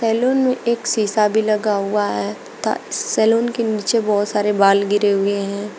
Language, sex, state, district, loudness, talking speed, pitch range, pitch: Hindi, female, Uttar Pradesh, Shamli, -18 LUFS, 185 wpm, 200-225 Hz, 210 Hz